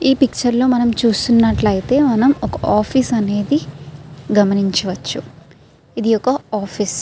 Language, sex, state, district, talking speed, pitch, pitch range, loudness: Telugu, female, Andhra Pradesh, Srikakulam, 120 wpm, 215 Hz, 185-245 Hz, -16 LUFS